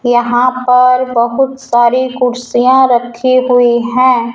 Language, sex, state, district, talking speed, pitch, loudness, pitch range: Hindi, female, Rajasthan, Jaipur, 110 wpm, 250 Hz, -11 LUFS, 240-255 Hz